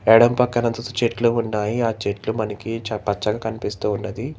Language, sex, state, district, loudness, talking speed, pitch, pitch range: Telugu, male, Telangana, Hyderabad, -22 LUFS, 150 wpm, 110 Hz, 105-115 Hz